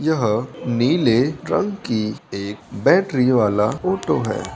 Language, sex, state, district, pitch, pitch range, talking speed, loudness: Hindi, male, Bihar, Saharsa, 125 Hz, 105-155 Hz, 120 wpm, -20 LUFS